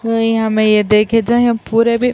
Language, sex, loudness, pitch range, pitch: Urdu, female, -13 LUFS, 215-235 Hz, 225 Hz